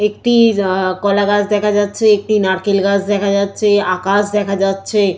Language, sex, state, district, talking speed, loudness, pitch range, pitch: Bengali, female, West Bengal, Malda, 130 wpm, -14 LUFS, 195-210 Hz, 205 Hz